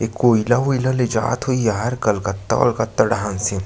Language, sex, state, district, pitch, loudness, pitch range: Chhattisgarhi, male, Chhattisgarh, Sarguja, 115 Hz, -19 LUFS, 105-125 Hz